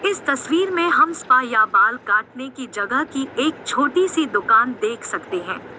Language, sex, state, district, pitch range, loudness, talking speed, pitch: Hindi, female, Uttar Pradesh, Jyotiba Phule Nagar, 250-345 Hz, -19 LUFS, 185 wpm, 280 Hz